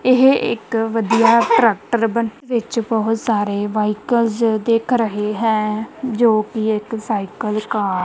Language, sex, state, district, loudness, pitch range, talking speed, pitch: Punjabi, female, Punjab, Kapurthala, -18 LUFS, 215-235 Hz, 120 wpm, 225 Hz